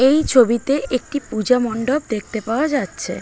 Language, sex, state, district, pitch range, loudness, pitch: Bengali, female, West Bengal, Malda, 225-280 Hz, -19 LUFS, 250 Hz